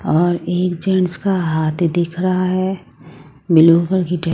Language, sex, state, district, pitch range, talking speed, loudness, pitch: Hindi, female, Odisha, Sambalpur, 165-185 Hz, 110 wpm, -16 LUFS, 175 Hz